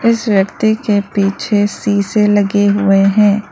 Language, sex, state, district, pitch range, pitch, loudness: Hindi, female, Arunachal Pradesh, Lower Dibang Valley, 200-210 Hz, 205 Hz, -13 LUFS